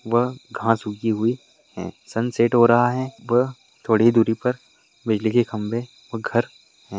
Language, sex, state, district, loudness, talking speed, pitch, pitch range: Hindi, male, Maharashtra, Solapur, -21 LUFS, 170 wpm, 115 Hz, 115-120 Hz